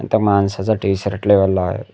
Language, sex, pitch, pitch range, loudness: Marathi, male, 100 Hz, 95-110 Hz, -17 LUFS